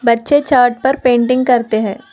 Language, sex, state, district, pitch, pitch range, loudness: Hindi, female, Telangana, Hyderabad, 245 Hz, 235-265 Hz, -13 LUFS